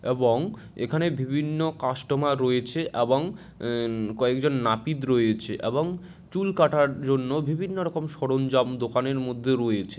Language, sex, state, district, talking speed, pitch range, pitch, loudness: Bengali, male, West Bengal, Dakshin Dinajpur, 125 wpm, 125-155 Hz, 135 Hz, -26 LUFS